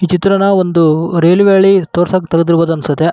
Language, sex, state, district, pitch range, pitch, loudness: Kannada, male, Karnataka, Raichur, 165-190 Hz, 175 Hz, -11 LUFS